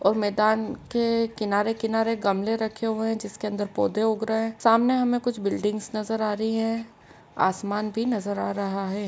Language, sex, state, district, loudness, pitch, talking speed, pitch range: Hindi, female, Uttar Pradesh, Etah, -25 LUFS, 220 Hz, 190 wpm, 205-225 Hz